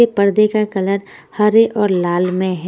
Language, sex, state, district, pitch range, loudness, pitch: Hindi, female, Punjab, Kapurthala, 185-215 Hz, -15 LUFS, 200 Hz